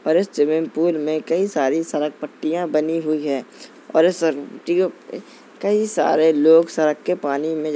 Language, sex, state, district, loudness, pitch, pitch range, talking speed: Hindi, male, Uttar Pradesh, Jalaun, -20 LUFS, 160 Hz, 150-170 Hz, 195 wpm